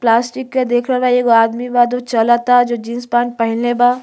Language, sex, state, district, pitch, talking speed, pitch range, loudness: Bhojpuri, female, Uttar Pradesh, Gorakhpur, 240 Hz, 225 wpm, 235-245 Hz, -15 LUFS